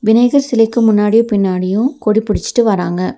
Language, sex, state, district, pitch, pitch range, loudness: Tamil, female, Tamil Nadu, Nilgiris, 220 Hz, 200-235 Hz, -13 LUFS